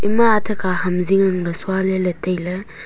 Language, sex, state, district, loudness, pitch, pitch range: Wancho, female, Arunachal Pradesh, Longding, -19 LUFS, 185 Hz, 180-195 Hz